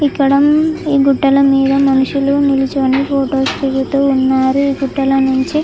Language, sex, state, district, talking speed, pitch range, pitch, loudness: Telugu, female, Andhra Pradesh, Chittoor, 150 wpm, 270-280 Hz, 275 Hz, -13 LUFS